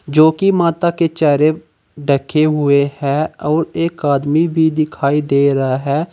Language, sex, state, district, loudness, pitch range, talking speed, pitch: Hindi, male, Uttar Pradesh, Saharanpur, -15 LUFS, 140-160 Hz, 155 wpm, 150 Hz